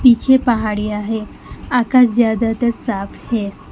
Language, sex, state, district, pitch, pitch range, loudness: Hindi, female, West Bengal, Alipurduar, 230 Hz, 215-245 Hz, -17 LUFS